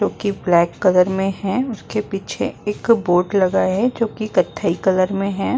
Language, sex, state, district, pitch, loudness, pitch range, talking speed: Hindi, female, Uttar Pradesh, Muzaffarnagar, 195 Hz, -19 LUFS, 185-215 Hz, 180 wpm